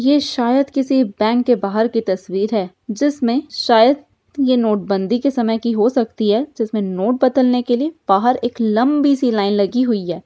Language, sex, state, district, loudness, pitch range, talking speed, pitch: Hindi, female, Bihar, Jahanabad, -17 LUFS, 215-260 Hz, 185 wpm, 235 Hz